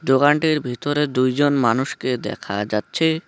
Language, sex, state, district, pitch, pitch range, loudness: Bengali, male, West Bengal, Cooch Behar, 135 Hz, 125-150 Hz, -20 LUFS